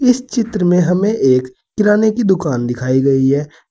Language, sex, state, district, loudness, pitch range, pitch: Hindi, male, Uttar Pradesh, Saharanpur, -15 LUFS, 135-215 Hz, 175 Hz